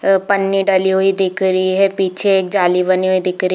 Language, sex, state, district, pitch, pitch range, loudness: Hindi, female, Chhattisgarh, Bilaspur, 190 Hz, 185-195 Hz, -15 LUFS